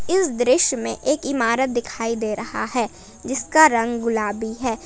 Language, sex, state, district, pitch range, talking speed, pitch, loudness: Hindi, female, Jharkhand, Palamu, 230-265 Hz, 160 wpm, 235 Hz, -20 LUFS